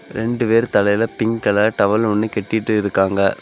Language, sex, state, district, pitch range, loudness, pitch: Tamil, male, Tamil Nadu, Kanyakumari, 100-115 Hz, -17 LUFS, 105 Hz